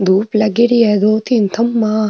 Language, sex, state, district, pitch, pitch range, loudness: Rajasthani, female, Rajasthan, Nagaur, 215 Hz, 210-235 Hz, -13 LUFS